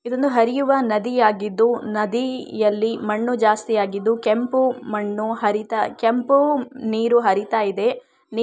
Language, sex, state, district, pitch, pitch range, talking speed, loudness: Kannada, female, Karnataka, Shimoga, 225 Hz, 215-250 Hz, 90 wpm, -20 LUFS